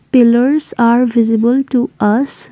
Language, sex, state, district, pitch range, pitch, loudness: English, female, Assam, Kamrup Metropolitan, 235-260 Hz, 245 Hz, -12 LUFS